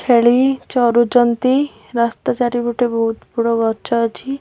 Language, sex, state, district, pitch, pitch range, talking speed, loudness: Odia, female, Odisha, Khordha, 240 Hz, 230-255 Hz, 110 wpm, -17 LUFS